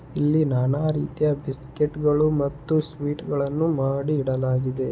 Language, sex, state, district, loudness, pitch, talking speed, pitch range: Kannada, male, Karnataka, Belgaum, -24 LUFS, 145 Hz, 120 wpm, 135-150 Hz